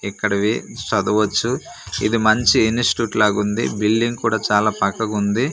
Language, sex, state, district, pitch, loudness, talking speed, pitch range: Telugu, male, Andhra Pradesh, Manyam, 110 Hz, -19 LUFS, 110 wpm, 105-115 Hz